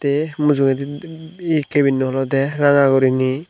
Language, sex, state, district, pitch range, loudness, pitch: Chakma, male, Tripura, Unakoti, 135-150 Hz, -17 LUFS, 140 Hz